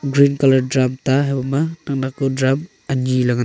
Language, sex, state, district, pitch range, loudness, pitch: Wancho, male, Arunachal Pradesh, Longding, 130-140 Hz, -18 LUFS, 135 Hz